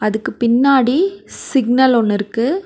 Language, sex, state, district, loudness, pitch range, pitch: Tamil, female, Tamil Nadu, Nilgiris, -15 LUFS, 230-275 Hz, 250 Hz